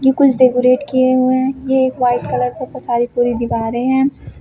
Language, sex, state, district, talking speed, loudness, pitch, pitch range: Hindi, female, Uttar Pradesh, Lucknow, 175 wpm, -15 LUFS, 255 Hz, 245-265 Hz